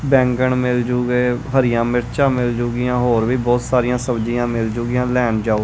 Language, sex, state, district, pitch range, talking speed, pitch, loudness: Punjabi, male, Punjab, Kapurthala, 120-125 Hz, 140 wpm, 125 Hz, -18 LUFS